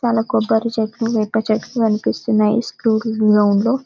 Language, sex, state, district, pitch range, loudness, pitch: Telugu, female, Telangana, Karimnagar, 215-230 Hz, -17 LUFS, 220 Hz